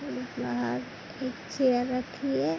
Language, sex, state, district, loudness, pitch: Hindi, female, Chhattisgarh, Bilaspur, -30 LUFS, 245 Hz